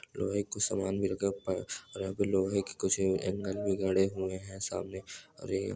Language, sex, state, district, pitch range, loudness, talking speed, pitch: Hindi, male, Bihar, Saran, 95-100 Hz, -33 LUFS, 230 wpm, 95 Hz